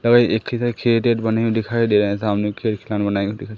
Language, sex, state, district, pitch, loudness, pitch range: Hindi, female, Madhya Pradesh, Umaria, 110 Hz, -19 LUFS, 105-120 Hz